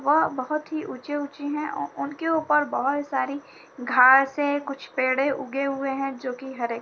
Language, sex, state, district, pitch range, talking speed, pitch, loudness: Hindi, female, Uttar Pradesh, Etah, 265-290 Hz, 185 wpm, 275 Hz, -24 LUFS